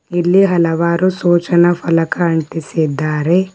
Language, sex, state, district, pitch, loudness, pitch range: Kannada, female, Karnataka, Bidar, 170 Hz, -14 LUFS, 165-175 Hz